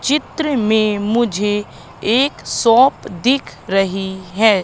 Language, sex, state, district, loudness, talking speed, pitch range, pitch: Hindi, female, Madhya Pradesh, Katni, -16 LUFS, 105 wpm, 200-255 Hz, 215 Hz